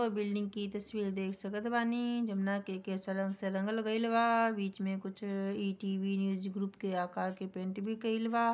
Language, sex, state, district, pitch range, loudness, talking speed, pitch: Bhojpuri, female, Bihar, Gopalganj, 195-220 Hz, -35 LUFS, 180 wpm, 200 Hz